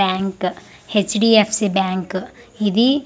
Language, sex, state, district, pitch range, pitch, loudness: Telugu, female, Andhra Pradesh, Manyam, 190-225 Hz, 205 Hz, -18 LUFS